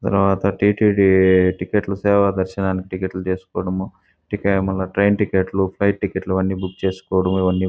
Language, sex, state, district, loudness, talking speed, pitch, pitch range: Telugu, male, Andhra Pradesh, Chittoor, -19 LUFS, 150 wpm, 95 Hz, 95-100 Hz